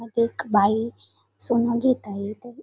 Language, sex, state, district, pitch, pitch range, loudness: Marathi, female, Maharashtra, Sindhudurg, 230 Hz, 205-240 Hz, -23 LUFS